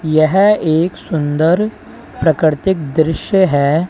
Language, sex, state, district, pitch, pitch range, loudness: Hindi, male, Uttar Pradesh, Lalitpur, 160 Hz, 155-185 Hz, -14 LUFS